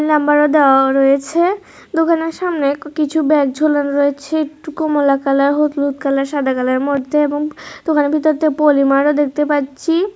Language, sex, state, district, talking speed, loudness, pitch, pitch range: Bengali, female, Tripura, West Tripura, 145 wpm, -15 LUFS, 295 Hz, 280-310 Hz